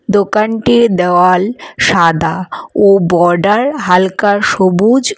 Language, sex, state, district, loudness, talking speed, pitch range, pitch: Bengali, female, West Bengal, Alipurduar, -11 LUFS, 80 wpm, 180-220 Hz, 195 Hz